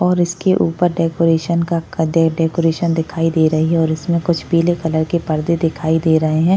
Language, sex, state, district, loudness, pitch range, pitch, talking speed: Hindi, female, Maharashtra, Chandrapur, -16 LUFS, 160-170 Hz, 165 Hz, 190 wpm